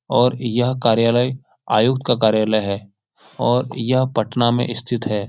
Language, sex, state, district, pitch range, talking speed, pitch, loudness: Hindi, male, Bihar, Jahanabad, 110-125 Hz, 145 wpm, 120 Hz, -19 LUFS